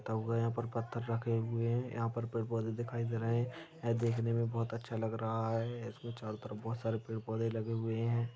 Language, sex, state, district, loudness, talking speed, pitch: Hindi, male, Chhattisgarh, Raigarh, -37 LUFS, 200 wpm, 115 Hz